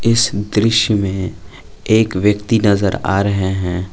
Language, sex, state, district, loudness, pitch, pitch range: Hindi, male, Jharkhand, Palamu, -16 LUFS, 100 Hz, 95-110 Hz